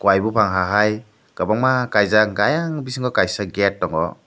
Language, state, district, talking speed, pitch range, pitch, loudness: Kokborok, Tripura, Dhalai, 140 wpm, 105-125 Hz, 105 Hz, -19 LUFS